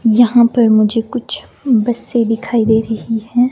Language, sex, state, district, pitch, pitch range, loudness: Hindi, female, Himachal Pradesh, Shimla, 230 Hz, 225-240 Hz, -14 LUFS